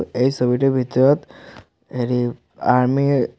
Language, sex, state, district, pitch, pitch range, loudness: Assamese, male, Assam, Sonitpur, 125 Hz, 125-135 Hz, -19 LUFS